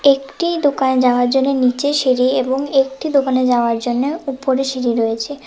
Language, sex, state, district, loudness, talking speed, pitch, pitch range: Bengali, female, West Bengal, Cooch Behar, -16 LUFS, 155 wpm, 265 Hz, 250-280 Hz